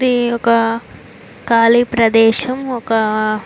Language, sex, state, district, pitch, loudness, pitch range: Telugu, female, Andhra Pradesh, Chittoor, 230 Hz, -14 LUFS, 225-240 Hz